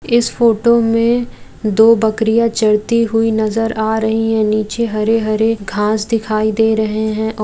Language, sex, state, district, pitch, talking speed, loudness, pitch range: Hindi, female, Bihar, Gaya, 220 Hz, 160 wpm, -15 LUFS, 215-230 Hz